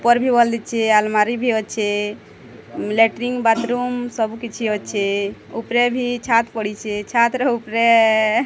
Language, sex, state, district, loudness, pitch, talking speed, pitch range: Odia, female, Odisha, Sambalpur, -19 LUFS, 230 Hz, 135 wpm, 215-240 Hz